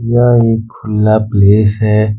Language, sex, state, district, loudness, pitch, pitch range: Hindi, male, Jharkhand, Ranchi, -11 LUFS, 110 Hz, 105-115 Hz